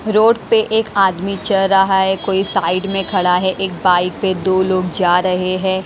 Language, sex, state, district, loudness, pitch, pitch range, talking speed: Hindi, female, Haryana, Jhajjar, -15 LUFS, 190 Hz, 185-195 Hz, 205 wpm